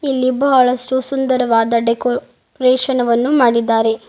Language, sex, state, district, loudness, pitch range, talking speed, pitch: Kannada, female, Karnataka, Bidar, -15 LUFS, 235-260 Hz, 90 wpm, 250 Hz